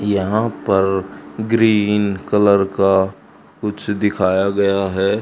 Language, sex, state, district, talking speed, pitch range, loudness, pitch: Hindi, male, Haryana, Charkhi Dadri, 105 wpm, 95-105 Hz, -17 LUFS, 100 Hz